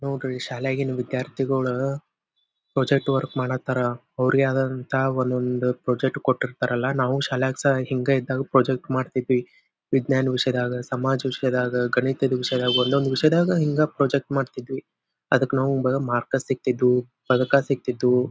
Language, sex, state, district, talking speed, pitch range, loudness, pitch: Kannada, male, Karnataka, Dharwad, 120 wpm, 125-135 Hz, -23 LUFS, 130 Hz